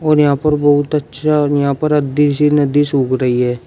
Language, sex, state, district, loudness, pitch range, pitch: Hindi, male, Uttar Pradesh, Shamli, -14 LUFS, 140-150 Hz, 145 Hz